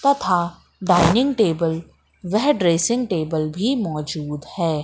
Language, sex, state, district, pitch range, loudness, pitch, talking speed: Hindi, female, Madhya Pradesh, Katni, 160-220 Hz, -20 LUFS, 175 Hz, 110 wpm